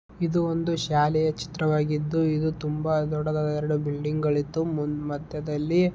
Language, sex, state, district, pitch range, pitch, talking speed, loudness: Kannada, male, Karnataka, Belgaum, 150-160 Hz, 155 Hz, 130 wpm, -26 LUFS